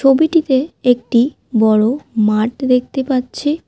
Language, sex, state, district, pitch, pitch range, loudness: Bengali, female, West Bengal, Alipurduar, 255 Hz, 235-270 Hz, -15 LUFS